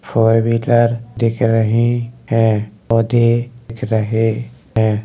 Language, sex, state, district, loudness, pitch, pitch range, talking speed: Hindi, male, Uttar Pradesh, Jalaun, -16 LUFS, 115 Hz, 110-120 Hz, 95 wpm